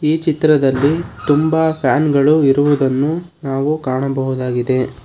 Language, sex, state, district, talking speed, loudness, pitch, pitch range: Kannada, male, Karnataka, Bangalore, 95 wpm, -16 LUFS, 145 Hz, 135-155 Hz